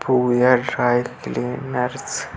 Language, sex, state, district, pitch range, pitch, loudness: Hindi, female, Bihar, Vaishali, 125-130 Hz, 125 Hz, -20 LUFS